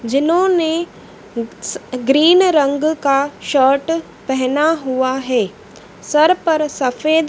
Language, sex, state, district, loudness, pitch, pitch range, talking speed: Hindi, female, Madhya Pradesh, Dhar, -16 LUFS, 285 Hz, 260-320 Hz, 100 wpm